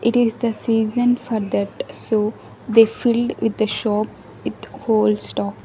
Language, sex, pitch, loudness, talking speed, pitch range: English, female, 220 Hz, -20 LUFS, 160 wpm, 215-235 Hz